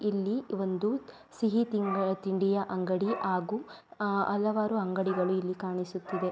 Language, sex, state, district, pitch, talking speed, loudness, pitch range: Kannada, female, Karnataka, Mysore, 195 Hz, 115 wpm, -31 LUFS, 185-215 Hz